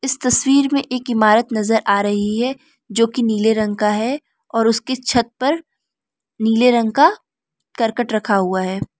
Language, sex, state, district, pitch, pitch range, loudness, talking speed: Hindi, female, Arunachal Pradesh, Lower Dibang Valley, 230 Hz, 215-265 Hz, -17 LUFS, 175 wpm